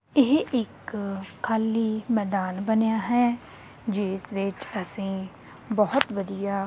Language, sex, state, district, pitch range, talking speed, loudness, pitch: Punjabi, female, Punjab, Kapurthala, 195-225 Hz, 100 wpm, -26 LUFS, 210 Hz